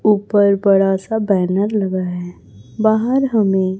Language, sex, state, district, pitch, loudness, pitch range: Hindi, male, Chhattisgarh, Raipur, 200 Hz, -16 LUFS, 185-215 Hz